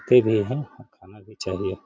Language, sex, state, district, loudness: Hindi, male, Bihar, Gaya, -23 LUFS